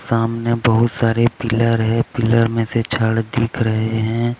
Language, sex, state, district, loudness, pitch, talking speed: Hindi, male, Jharkhand, Deoghar, -18 LUFS, 115 Hz, 165 wpm